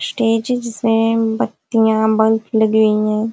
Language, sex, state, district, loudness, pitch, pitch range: Hindi, female, Uttar Pradesh, Ghazipur, -16 LUFS, 220 Hz, 220-225 Hz